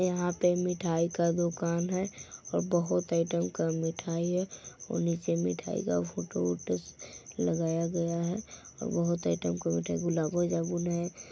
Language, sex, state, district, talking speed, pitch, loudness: Hindi, female, Bihar, Vaishali, 160 wpm, 170 Hz, -31 LUFS